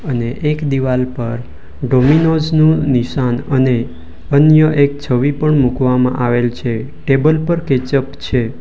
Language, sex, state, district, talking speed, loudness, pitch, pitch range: Gujarati, male, Gujarat, Valsad, 130 wpm, -14 LUFS, 130 Hz, 125-150 Hz